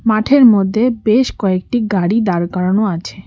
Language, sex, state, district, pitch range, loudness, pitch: Bengali, female, West Bengal, Cooch Behar, 185-235 Hz, -14 LUFS, 215 Hz